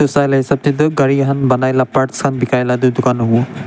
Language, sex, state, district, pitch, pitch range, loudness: Nagamese, male, Nagaland, Dimapur, 135 Hz, 125-140 Hz, -14 LUFS